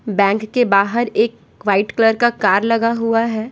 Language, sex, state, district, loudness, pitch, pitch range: Hindi, female, Bihar, West Champaran, -16 LUFS, 225 Hz, 210-230 Hz